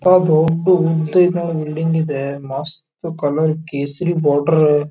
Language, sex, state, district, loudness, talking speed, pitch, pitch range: Kannada, male, Karnataka, Dharwad, -17 LUFS, 120 wpm, 160 Hz, 145-165 Hz